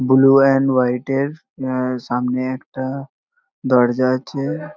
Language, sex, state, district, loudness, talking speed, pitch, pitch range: Bengali, male, West Bengal, North 24 Parganas, -18 LUFS, 115 wpm, 130 Hz, 130-135 Hz